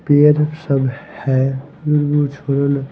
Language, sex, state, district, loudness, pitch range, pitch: Hindi, male, Himachal Pradesh, Shimla, -17 LUFS, 135-150 Hz, 145 Hz